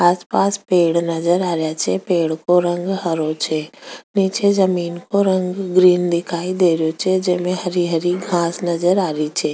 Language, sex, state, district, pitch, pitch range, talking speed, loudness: Rajasthani, female, Rajasthan, Nagaur, 175 Hz, 170-185 Hz, 175 wpm, -18 LUFS